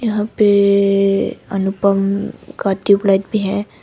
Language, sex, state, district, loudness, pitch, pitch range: Hindi, female, Arunachal Pradesh, Papum Pare, -16 LUFS, 200 Hz, 195-205 Hz